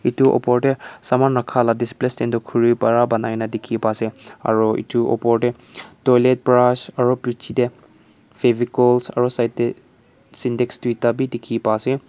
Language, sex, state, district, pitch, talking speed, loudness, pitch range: Nagamese, male, Nagaland, Kohima, 120 Hz, 175 wpm, -19 LUFS, 115-125 Hz